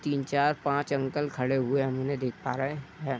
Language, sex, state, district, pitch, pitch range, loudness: Hindi, male, Bihar, Sitamarhi, 140 Hz, 135-145 Hz, -29 LUFS